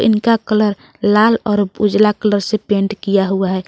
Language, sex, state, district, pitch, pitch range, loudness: Hindi, female, Jharkhand, Garhwa, 210 Hz, 200-215 Hz, -15 LUFS